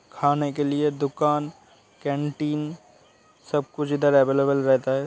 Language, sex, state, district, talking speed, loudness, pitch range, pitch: Hindi, male, Uttar Pradesh, Hamirpur, 130 wpm, -24 LUFS, 140-150 Hz, 145 Hz